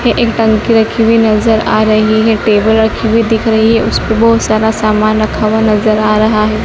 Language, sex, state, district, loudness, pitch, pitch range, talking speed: Hindi, female, Madhya Pradesh, Dhar, -10 LUFS, 220 Hz, 215-225 Hz, 225 wpm